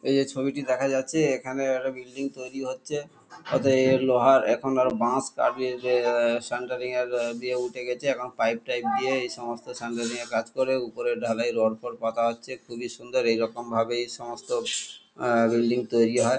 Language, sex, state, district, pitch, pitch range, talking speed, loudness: Bengali, male, West Bengal, Kolkata, 125 Hz, 120-130 Hz, 185 wpm, -26 LUFS